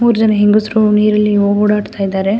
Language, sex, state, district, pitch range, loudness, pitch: Kannada, female, Karnataka, Dakshina Kannada, 205-215 Hz, -12 LUFS, 210 Hz